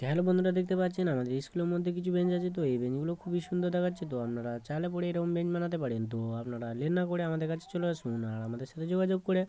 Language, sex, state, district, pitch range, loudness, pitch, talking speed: Bengali, male, West Bengal, Jhargram, 130-180 Hz, -32 LUFS, 170 Hz, 265 wpm